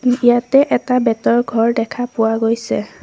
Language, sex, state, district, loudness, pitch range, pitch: Assamese, female, Assam, Sonitpur, -16 LUFS, 230-245 Hz, 240 Hz